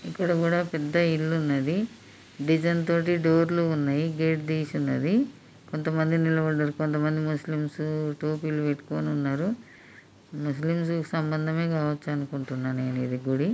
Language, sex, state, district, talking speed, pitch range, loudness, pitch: Telugu, male, Telangana, Nalgonda, 120 wpm, 145-165 Hz, -27 LUFS, 155 Hz